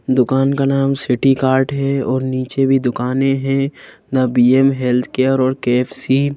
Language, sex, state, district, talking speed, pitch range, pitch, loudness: Hindi, female, Madhya Pradesh, Bhopal, 170 wpm, 130-135 Hz, 130 Hz, -16 LUFS